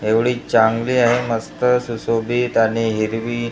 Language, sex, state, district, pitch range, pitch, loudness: Marathi, male, Maharashtra, Gondia, 110-120 Hz, 115 Hz, -18 LUFS